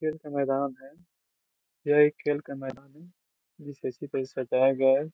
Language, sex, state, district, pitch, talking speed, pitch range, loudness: Hindi, male, Bihar, Saran, 140 Hz, 175 wpm, 135-150 Hz, -27 LUFS